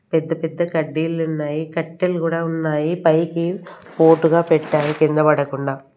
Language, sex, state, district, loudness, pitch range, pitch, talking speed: Telugu, female, Andhra Pradesh, Sri Satya Sai, -19 LUFS, 155-165 Hz, 160 Hz, 120 wpm